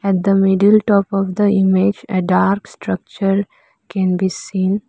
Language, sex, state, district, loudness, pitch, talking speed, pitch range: English, female, Arunachal Pradesh, Lower Dibang Valley, -16 LUFS, 195 Hz, 160 wpm, 190-205 Hz